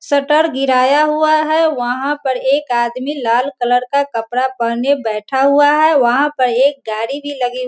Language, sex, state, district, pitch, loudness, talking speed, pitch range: Hindi, female, Bihar, Sitamarhi, 270 Hz, -15 LUFS, 195 wpm, 245-290 Hz